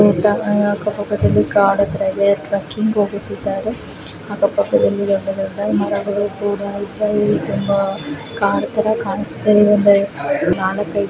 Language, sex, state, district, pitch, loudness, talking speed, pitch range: Kannada, female, Karnataka, Gulbarga, 200 Hz, -17 LUFS, 105 wpm, 195-205 Hz